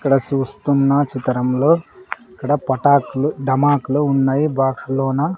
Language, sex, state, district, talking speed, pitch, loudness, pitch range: Telugu, female, Andhra Pradesh, Sri Satya Sai, 110 wpm, 140 Hz, -18 LUFS, 135-145 Hz